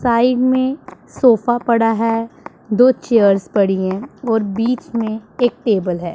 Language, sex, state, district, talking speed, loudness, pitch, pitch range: Hindi, female, Punjab, Pathankot, 145 wpm, -16 LUFS, 230 Hz, 210-245 Hz